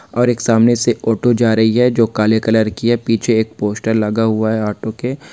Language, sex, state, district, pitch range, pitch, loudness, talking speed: Hindi, male, Chhattisgarh, Jashpur, 110-120 Hz, 110 Hz, -15 LUFS, 250 wpm